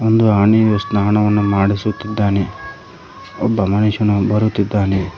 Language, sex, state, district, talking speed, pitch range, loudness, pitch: Kannada, male, Karnataka, Koppal, 80 wpm, 100-110 Hz, -16 LUFS, 105 Hz